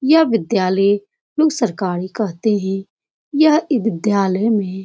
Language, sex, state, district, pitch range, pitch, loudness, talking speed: Hindi, female, Uttar Pradesh, Etah, 190-275 Hz, 215 Hz, -17 LUFS, 135 wpm